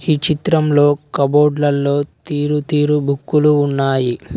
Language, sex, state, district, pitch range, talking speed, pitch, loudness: Telugu, male, Telangana, Mahabubabad, 140-150 Hz, 95 wpm, 145 Hz, -16 LUFS